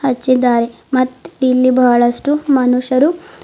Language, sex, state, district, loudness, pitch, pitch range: Kannada, female, Karnataka, Bidar, -14 LUFS, 255 Hz, 250-275 Hz